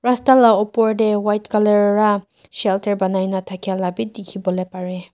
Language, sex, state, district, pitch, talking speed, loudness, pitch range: Nagamese, female, Nagaland, Dimapur, 205 Hz, 175 wpm, -18 LUFS, 190-215 Hz